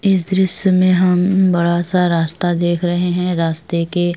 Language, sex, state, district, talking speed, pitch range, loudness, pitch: Hindi, female, Uttar Pradesh, Jyotiba Phule Nagar, 185 wpm, 170-185 Hz, -16 LUFS, 175 Hz